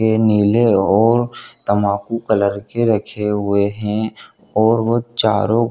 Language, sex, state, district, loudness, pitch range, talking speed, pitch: Hindi, male, Jharkhand, Jamtara, -17 LUFS, 100-115 Hz, 135 wpm, 110 Hz